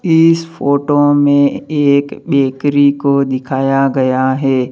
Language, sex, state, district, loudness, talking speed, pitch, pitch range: Hindi, male, Uttar Pradesh, Lalitpur, -13 LUFS, 115 wpm, 140 Hz, 135-145 Hz